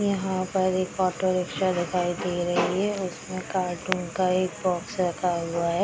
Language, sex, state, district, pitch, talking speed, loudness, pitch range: Hindi, female, Bihar, Darbhanga, 185 Hz, 175 wpm, -26 LUFS, 175-185 Hz